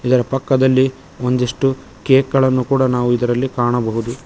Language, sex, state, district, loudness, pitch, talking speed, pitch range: Kannada, male, Karnataka, Koppal, -16 LUFS, 130 Hz, 125 wpm, 120-135 Hz